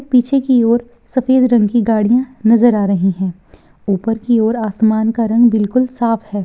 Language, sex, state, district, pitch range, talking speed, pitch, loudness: Hindi, female, Bihar, Begusarai, 215-240 Hz, 185 wpm, 230 Hz, -14 LUFS